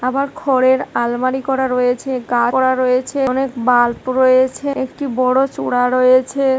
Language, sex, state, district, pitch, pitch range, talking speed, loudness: Bengali, female, West Bengal, Kolkata, 255 Hz, 250-265 Hz, 135 wpm, -16 LUFS